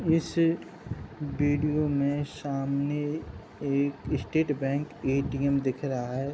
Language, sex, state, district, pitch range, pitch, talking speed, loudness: Hindi, male, Uttar Pradesh, Hamirpur, 140-150 Hz, 140 Hz, 105 wpm, -29 LUFS